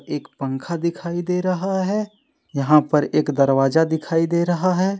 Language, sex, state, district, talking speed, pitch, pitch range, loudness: Hindi, male, Jharkhand, Deoghar, 170 wpm, 170 Hz, 150-185 Hz, -20 LUFS